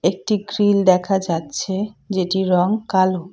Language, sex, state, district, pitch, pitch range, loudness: Bengali, female, West Bengal, Cooch Behar, 190 Hz, 180-205 Hz, -19 LUFS